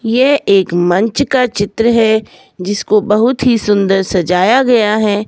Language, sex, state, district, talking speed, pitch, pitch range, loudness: Hindi, female, Himachal Pradesh, Shimla, 150 wpm, 215 Hz, 200-240 Hz, -12 LUFS